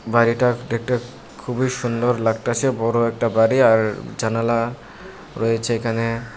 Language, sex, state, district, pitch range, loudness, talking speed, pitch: Bengali, male, Tripura, Unakoti, 115-120 Hz, -20 LUFS, 115 wpm, 115 Hz